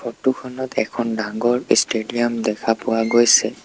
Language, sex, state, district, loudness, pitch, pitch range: Assamese, male, Assam, Sonitpur, -19 LUFS, 120 Hz, 110-120 Hz